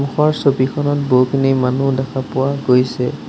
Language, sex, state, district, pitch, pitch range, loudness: Assamese, male, Assam, Sonitpur, 135 Hz, 130-140 Hz, -16 LUFS